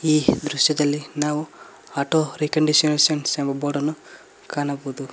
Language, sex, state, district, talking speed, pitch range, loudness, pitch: Kannada, male, Karnataka, Koppal, 105 wpm, 145-155 Hz, -21 LUFS, 150 Hz